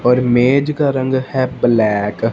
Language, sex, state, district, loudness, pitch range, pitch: Hindi, male, Punjab, Fazilka, -15 LUFS, 115-130 Hz, 125 Hz